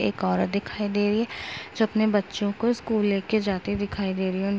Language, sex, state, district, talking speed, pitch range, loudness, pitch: Hindi, female, Uttar Pradesh, Etah, 250 wpm, 195-215 Hz, -26 LUFS, 205 Hz